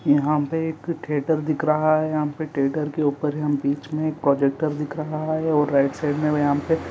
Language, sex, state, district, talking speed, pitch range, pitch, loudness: Hindi, male, Chhattisgarh, Rajnandgaon, 225 wpm, 145-155 Hz, 150 Hz, -23 LUFS